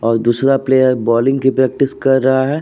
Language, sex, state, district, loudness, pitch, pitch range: Hindi, male, Uttar Pradesh, Jyotiba Phule Nagar, -14 LUFS, 130 Hz, 125-135 Hz